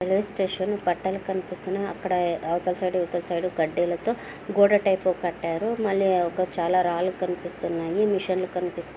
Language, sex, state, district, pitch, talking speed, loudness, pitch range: Telugu, female, Andhra Pradesh, Krishna, 185 Hz, 120 wpm, -25 LUFS, 175-195 Hz